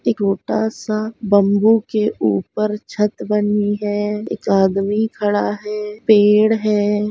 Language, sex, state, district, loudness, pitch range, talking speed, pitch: Hindi, female, Bihar, Saharsa, -17 LUFS, 205-215 Hz, 110 wpm, 210 Hz